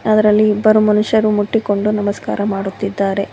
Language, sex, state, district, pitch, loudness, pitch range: Kannada, female, Karnataka, Bangalore, 210 Hz, -15 LUFS, 200-215 Hz